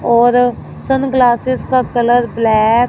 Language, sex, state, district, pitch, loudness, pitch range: Hindi, female, Punjab, Fazilka, 245 Hz, -13 LUFS, 235-255 Hz